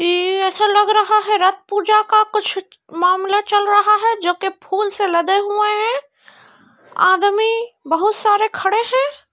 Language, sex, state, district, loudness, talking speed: Hindi, female, Bihar, Kishanganj, -16 LUFS, 160 wpm